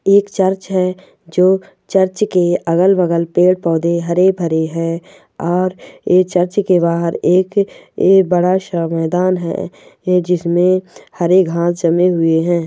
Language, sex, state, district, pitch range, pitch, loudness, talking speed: Hindi, female, Chhattisgarh, Raigarh, 170-185 Hz, 180 Hz, -15 LUFS, 140 wpm